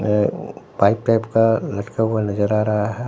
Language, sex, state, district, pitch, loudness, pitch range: Hindi, male, Bihar, Katihar, 110 Hz, -19 LUFS, 105-115 Hz